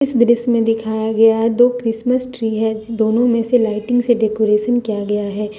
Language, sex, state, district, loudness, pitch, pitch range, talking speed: Hindi, female, Jharkhand, Deoghar, -16 LUFS, 225 Hz, 220-240 Hz, 205 wpm